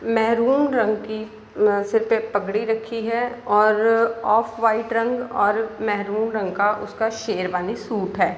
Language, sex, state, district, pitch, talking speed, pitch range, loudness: Hindi, female, Bihar, Gopalganj, 220 Hz, 150 wpm, 210-230 Hz, -21 LUFS